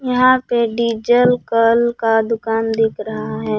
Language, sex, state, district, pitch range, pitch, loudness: Hindi, female, Jharkhand, Palamu, 225-240 Hz, 230 Hz, -16 LUFS